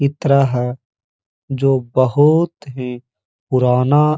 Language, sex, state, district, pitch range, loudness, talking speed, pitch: Hindi, male, Uttar Pradesh, Hamirpur, 125-140 Hz, -16 LUFS, 85 wpm, 130 Hz